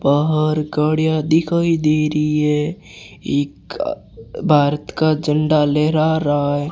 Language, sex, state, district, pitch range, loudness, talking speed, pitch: Hindi, female, Rajasthan, Bikaner, 150-155 Hz, -18 LUFS, 115 wpm, 150 Hz